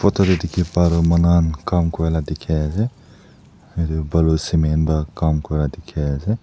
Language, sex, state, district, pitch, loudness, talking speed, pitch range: Nagamese, male, Nagaland, Dimapur, 85 Hz, -19 LUFS, 175 wpm, 80-85 Hz